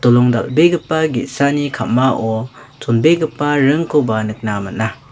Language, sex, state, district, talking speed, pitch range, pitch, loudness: Garo, male, Meghalaya, West Garo Hills, 95 wpm, 115-145 Hz, 130 Hz, -16 LUFS